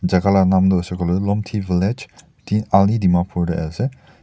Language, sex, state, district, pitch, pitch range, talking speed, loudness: Nagamese, male, Nagaland, Dimapur, 95 Hz, 90-105 Hz, 170 wpm, -18 LUFS